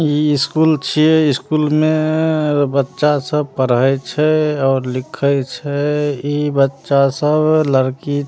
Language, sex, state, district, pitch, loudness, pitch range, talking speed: Maithili, male, Bihar, Samastipur, 145 Hz, -16 LUFS, 135-155 Hz, 125 wpm